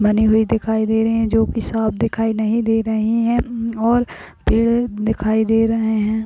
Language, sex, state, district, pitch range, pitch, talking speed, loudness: Hindi, female, Uttar Pradesh, Etah, 220-225 Hz, 225 Hz, 200 wpm, -18 LUFS